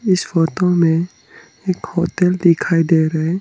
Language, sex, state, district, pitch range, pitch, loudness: Hindi, male, Arunachal Pradesh, Lower Dibang Valley, 165-185 Hz, 175 Hz, -16 LUFS